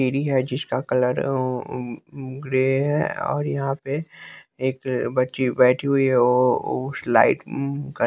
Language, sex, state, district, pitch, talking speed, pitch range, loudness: Hindi, male, Bihar, West Champaran, 130 Hz, 165 wpm, 125-140 Hz, -22 LUFS